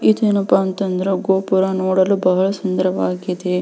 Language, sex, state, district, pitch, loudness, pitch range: Kannada, female, Karnataka, Belgaum, 190 Hz, -18 LUFS, 185-195 Hz